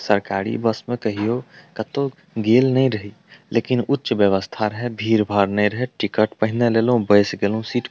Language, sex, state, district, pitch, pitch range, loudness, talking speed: Maithili, male, Bihar, Madhepura, 110 Hz, 105-120 Hz, -20 LUFS, 165 wpm